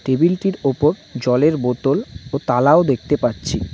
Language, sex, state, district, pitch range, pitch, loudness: Bengali, male, West Bengal, Cooch Behar, 130-170 Hz, 145 Hz, -18 LUFS